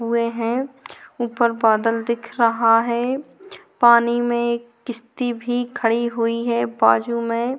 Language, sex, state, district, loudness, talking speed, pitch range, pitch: Hindi, female, Chhattisgarh, Korba, -20 LUFS, 125 wpm, 230-240 Hz, 235 Hz